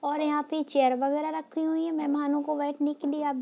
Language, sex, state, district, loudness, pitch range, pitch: Hindi, female, Bihar, Darbhanga, -28 LUFS, 285-305 Hz, 295 Hz